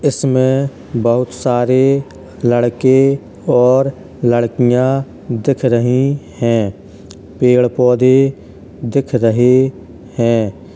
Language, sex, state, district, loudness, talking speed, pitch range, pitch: Hindi, male, Uttar Pradesh, Hamirpur, -14 LUFS, 80 wpm, 115-130 Hz, 125 Hz